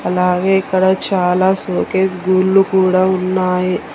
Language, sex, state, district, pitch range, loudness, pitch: Telugu, female, Telangana, Hyderabad, 185-190 Hz, -15 LUFS, 185 Hz